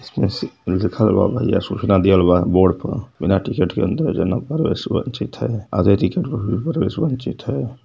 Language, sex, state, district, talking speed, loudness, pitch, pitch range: Hindi, male, Uttar Pradesh, Varanasi, 190 wpm, -19 LUFS, 100 Hz, 90-110 Hz